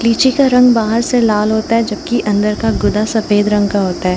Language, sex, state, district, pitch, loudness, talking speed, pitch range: Hindi, female, Jharkhand, Jamtara, 220 Hz, -13 LUFS, 245 wpm, 210-230 Hz